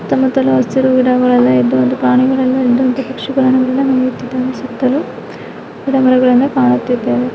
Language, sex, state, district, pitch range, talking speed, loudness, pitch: Kannada, female, Karnataka, Chamarajanagar, 250-265 Hz, 120 wpm, -13 LUFS, 255 Hz